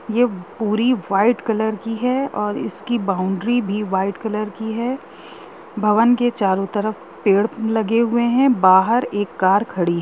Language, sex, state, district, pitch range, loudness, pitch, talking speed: Hindi, female, Jharkhand, Jamtara, 200-235 Hz, -19 LUFS, 220 Hz, 150 wpm